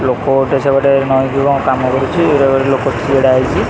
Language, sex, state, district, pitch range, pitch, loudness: Odia, male, Odisha, Khordha, 130-140 Hz, 135 Hz, -12 LUFS